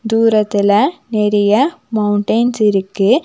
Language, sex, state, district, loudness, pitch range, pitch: Tamil, female, Tamil Nadu, Nilgiris, -14 LUFS, 205-230 Hz, 215 Hz